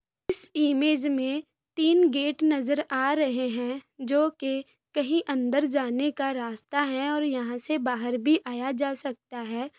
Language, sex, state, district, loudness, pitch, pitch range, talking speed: Hindi, female, Bihar, Sitamarhi, -27 LUFS, 280 Hz, 255-295 Hz, 160 wpm